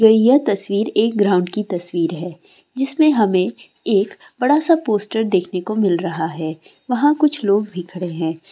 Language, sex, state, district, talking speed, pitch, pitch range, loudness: Hindi, female, Andhra Pradesh, Guntur, 175 wpm, 205 Hz, 180-240 Hz, -18 LUFS